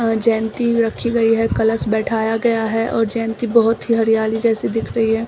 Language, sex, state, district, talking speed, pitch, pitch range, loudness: Hindi, female, Bihar, Samastipur, 205 wpm, 225 Hz, 225-230 Hz, -18 LUFS